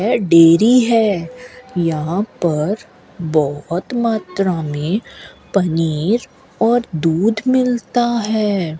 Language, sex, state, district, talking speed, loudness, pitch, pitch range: Hindi, female, Rajasthan, Bikaner, 90 wpm, -17 LUFS, 200 Hz, 165-235 Hz